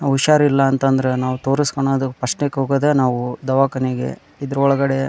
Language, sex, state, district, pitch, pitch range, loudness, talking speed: Kannada, male, Karnataka, Dharwad, 135 Hz, 130-140 Hz, -18 LUFS, 140 wpm